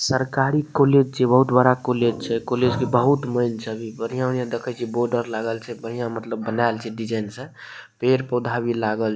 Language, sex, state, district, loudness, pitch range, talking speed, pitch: Maithili, male, Bihar, Madhepura, -22 LUFS, 115-130 Hz, 205 wpm, 120 Hz